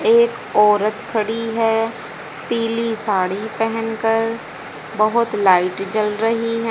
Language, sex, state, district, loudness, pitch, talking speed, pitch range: Hindi, female, Haryana, Jhajjar, -18 LUFS, 225 Hz, 105 wpm, 210-230 Hz